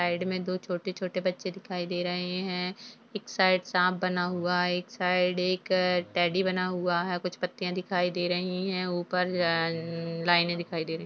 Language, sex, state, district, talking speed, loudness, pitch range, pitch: Hindi, female, Uttarakhand, Tehri Garhwal, 185 wpm, -29 LUFS, 175-185 Hz, 180 Hz